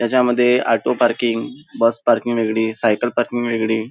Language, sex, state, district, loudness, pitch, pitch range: Marathi, male, Maharashtra, Nagpur, -18 LUFS, 120 Hz, 110-120 Hz